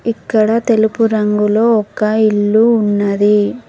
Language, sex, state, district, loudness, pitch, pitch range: Telugu, female, Telangana, Mahabubabad, -13 LUFS, 215 Hz, 210-225 Hz